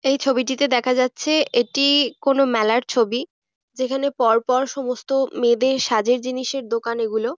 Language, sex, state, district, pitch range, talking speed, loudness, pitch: Bengali, female, West Bengal, Jhargram, 240-270 Hz, 140 wpm, -20 LUFS, 255 Hz